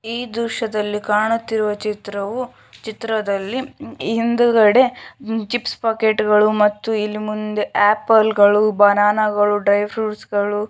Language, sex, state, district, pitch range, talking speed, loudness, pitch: Kannada, female, Karnataka, Shimoga, 210-225 Hz, 105 wpm, -18 LUFS, 215 Hz